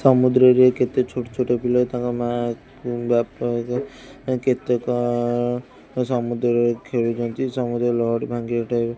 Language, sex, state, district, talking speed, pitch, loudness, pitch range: Odia, male, Odisha, Khordha, 160 wpm, 120 Hz, -21 LUFS, 120-125 Hz